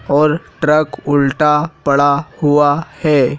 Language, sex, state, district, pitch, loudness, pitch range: Hindi, male, Madhya Pradesh, Dhar, 145 Hz, -14 LUFS, 145-150 Hz